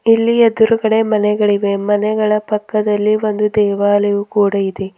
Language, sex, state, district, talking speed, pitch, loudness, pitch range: Kannada, female, Karnataka, Bidar, 110 wpm, 210 Hz, -15 LUFS, 205-215 Hz